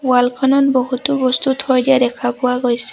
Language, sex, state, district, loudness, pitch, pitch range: Assamese, female, Assam, Sonitpur, -16 LUFS, 255 Hz, 250-270 Hz